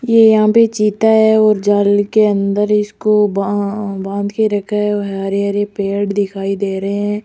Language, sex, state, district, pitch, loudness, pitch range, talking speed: Hindi, female, Rajasthan, Jaipur, 205 Hz, -14 LUFS, 200-215 Hz, 190 wpm